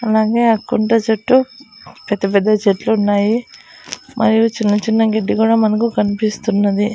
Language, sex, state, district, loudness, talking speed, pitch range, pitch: Telugu, female, Andhra Pradesh, Annamaya, -15 LUFS, 110 wpm, 210-230 Hz, 220 Hz